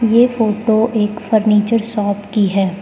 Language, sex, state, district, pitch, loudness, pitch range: Hindi, female, Arunachal Pradesh, Lower Dibang Valley, 215 Hz, -15 LUFS, 205-225 Hz